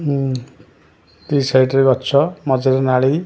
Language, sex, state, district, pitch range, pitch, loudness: Odia, male, Odisha, Khordha, 130-140 Hz, 130 Hz, -16 LUFS